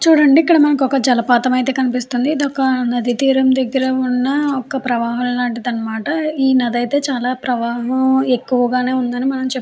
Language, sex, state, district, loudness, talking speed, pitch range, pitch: Telugu, female, Andhra Pradesh, Chittoor, -16 LUFS, 175 wpm, 245-270 Hz, 260 Hz